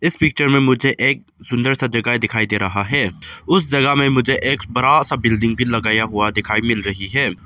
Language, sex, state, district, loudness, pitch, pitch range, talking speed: Hindi, male, Arunachal Pradesh, Lower Dibang Valley, -17 LUFS, 125 Hz, 110-135 Hz, 210 wpm